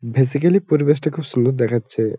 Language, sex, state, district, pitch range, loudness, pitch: Bengali, male, West Bengal, Malda, 120-155 Hz, -18 LUFS, 135 Hz